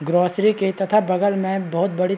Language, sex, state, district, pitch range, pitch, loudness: Hindi, male, Chhattisgarh, Raigarh, 180-200 Hz, 190 Hz, -20 LUFS